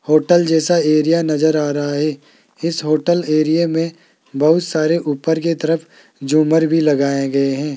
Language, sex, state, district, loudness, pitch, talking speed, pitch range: Hindi, male, Rajasthan, Jaipur, -16 LUFS, 155 Hz, 160 wpm, 150-165 Hz